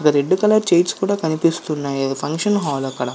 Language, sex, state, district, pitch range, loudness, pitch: Telugu, male, Andhra Pradesh, Visakhapatnam, 140-185 Hz, -19 LUFS, 160 Hz